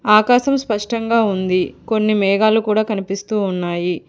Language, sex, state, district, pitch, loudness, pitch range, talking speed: Telugu, female, Telangana, Hyderabad, 215 Hz, -17 LUFS, 195-220 Hz, 115 wpm